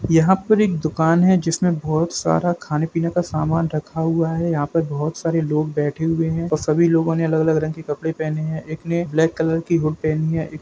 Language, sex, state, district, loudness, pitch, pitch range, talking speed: Hindi, male, Jharkhand, Jamtara, -20 LUFS, 160 Hz, 155-165 Hz, 225 wpm